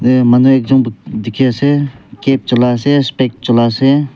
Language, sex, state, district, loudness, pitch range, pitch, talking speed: Nagamese, male, Nagaland, Kohima, -12 LUFS, 120-135 Hz, 130 Hz, 160 wpm